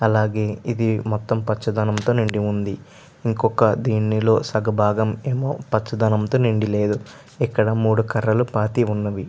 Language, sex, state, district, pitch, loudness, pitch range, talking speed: Telugu, male, Andhra Pradesh, Chittoor, 110 Hz, -21 LUFS, 105-115 Hz, 130 wpm